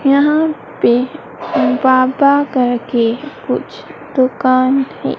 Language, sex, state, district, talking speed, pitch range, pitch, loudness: Hindi, female, Madhya Pradesh, Dhar, 90 wpm, 255-285 Hz, 265 Hz, -14 LUFS